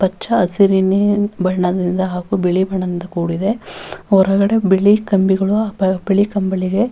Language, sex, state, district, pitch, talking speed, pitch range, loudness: Kannada, female, Karnataka, Bellary, 190 Hz, 120 wpm, 185-205 Hz, -16 LUFS